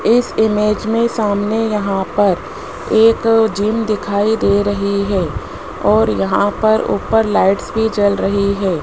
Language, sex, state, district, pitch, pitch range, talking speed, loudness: Hindi, male, Rajasthan, Jaipur, 205 Hz, 200-220 Hz, 145 wpm, -15 LUFS